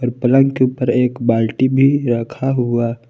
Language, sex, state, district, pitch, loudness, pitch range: Hindi, male, Jharkhand, Palamu, 125 Hz, -16 LUFS, 120-130 Hz